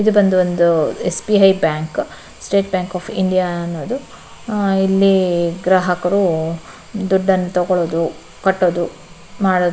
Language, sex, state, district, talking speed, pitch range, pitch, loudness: Kannada, female, Karnataka, Shimoga, 105 wpm, 175-195 Hz, 185 Hz, -17 LUFS